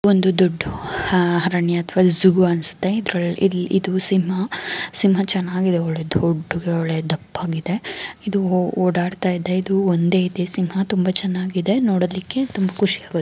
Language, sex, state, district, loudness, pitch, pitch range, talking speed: Kannada, female, Karnataka, Mysore, -19 LUFS, 185 Hz, 175-190 Hz, 115 wpm